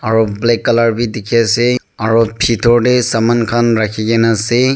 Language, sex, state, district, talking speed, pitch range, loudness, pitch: Nagamese, male, Nagaland, Dimapur, 190 wpm, 110-120 Hz, -13 LUFS, 115 Hz